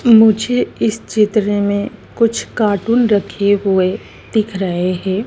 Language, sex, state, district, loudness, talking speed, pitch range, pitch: Hindi, female, Madhya Pradesh, Dhar, -15 LUFS, 125 wpm, 195-225 Hz, 210 Hz